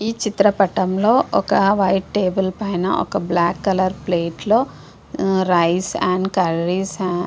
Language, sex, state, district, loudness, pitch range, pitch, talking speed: Telugu, female, Andhra Pradesh, Visakhapatnam, -19 LUFS, 180-200 Hz, 190 Hz, 130 wpm